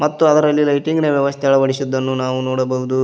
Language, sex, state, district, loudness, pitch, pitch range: Kannada, male, Karnataka, Koppal, -16 LUFS, 135 Hz, 130-150 Hz